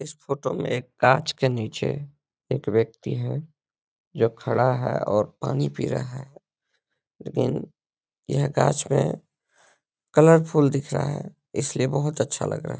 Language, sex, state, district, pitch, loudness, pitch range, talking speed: Hindi, male, Bihar, Lakhisarai, 135 Hz, -24 LUFS, 125-150 Hz, 150 wpm